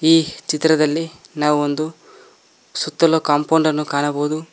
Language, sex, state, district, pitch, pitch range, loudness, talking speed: Kannada, male, Karnataka, Koppal, 155 Hz, 150-160 Hz, -18 LUFS, 105 wpm